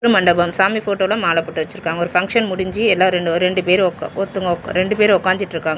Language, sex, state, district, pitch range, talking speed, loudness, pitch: Tamil, male, Tamil Nadu, Chennai, 175-200 Hz, 185 wpm, -17 LUFS, 185 Hz